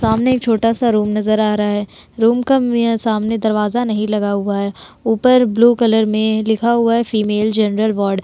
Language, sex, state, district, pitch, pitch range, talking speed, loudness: Hindi, female, Uttar Pradesh, Jalaun, 220 Hz, 210-235 Hz, 210 wpm, -16 LUFS